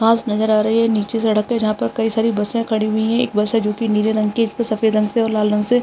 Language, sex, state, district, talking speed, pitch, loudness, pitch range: Hindi, male, Uttarakhand, Tehri Garhwal, 350 wpm, 220 Hz, -18 LUFS, 215-230 Hz